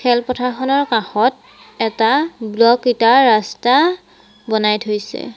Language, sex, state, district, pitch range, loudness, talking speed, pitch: Assamese, female, Assam, Sonitpur, 220-260 Hz, -16 LUFS, 100 wpm, 235 Hz